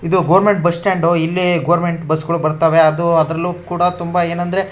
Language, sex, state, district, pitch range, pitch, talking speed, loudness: Kannada, male, Karnataka, Shimoga, 165-175 Hz, 175 Hz, 190 wpm, -15 LUFS